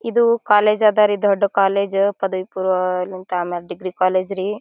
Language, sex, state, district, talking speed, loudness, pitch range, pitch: Kannada, female, Karnataka, Bijapur, 130 wpm, -18 LUFS, 185-210 Hz, 195 Hz